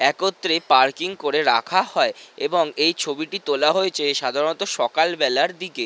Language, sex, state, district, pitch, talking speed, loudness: Bengali, male, West Bengal, North 24 Parganas, 190 Hz, 135 wpm, -20 LUFS